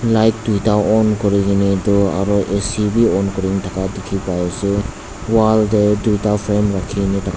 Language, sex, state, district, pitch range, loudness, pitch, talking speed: Nagamese, male, Nagaland, Dimapur, 100-105 Hz, -16 LUFS, 100 Hz, 195 wpm